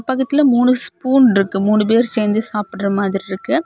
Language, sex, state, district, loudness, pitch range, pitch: Tamil, female, Tamil Nadu, Kanyakumari, -16 LUFS, 200-260 Hz, 225 Hz